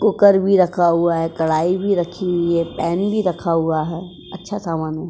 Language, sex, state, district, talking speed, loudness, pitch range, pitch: Hindi, female, Uttar Pradesh, Jyotiba Phule Nagar, 210 wpm, -18 LUFS, 165-185 Hz, 170 Hz